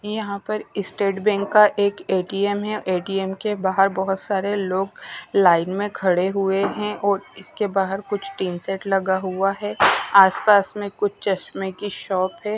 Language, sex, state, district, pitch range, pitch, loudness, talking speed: Hindi, female, Punjab, Kapurthala, 190-205 Hz, 195 Hz, -21 LUFS, 165 wpm